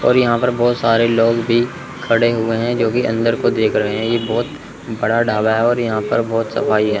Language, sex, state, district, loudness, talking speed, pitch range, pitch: Hindi, male, Chandigarh, Chandigarh, -16 LUFS, 240 wpm, 115-120 Hz, 115 Hz